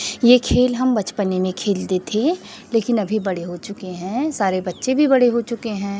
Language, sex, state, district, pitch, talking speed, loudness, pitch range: Hindi, female, Chhattisgarh, Raipur, 215 Hz, 200 wpm, -19 LUFS, 190-245 Hz